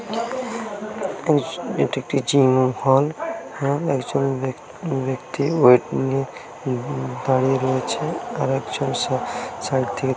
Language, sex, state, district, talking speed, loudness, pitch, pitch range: Bengali, male, West Bengal, Jhargram, 70 wpm, -22 LUFS, 135 Hz, 130-160 Hz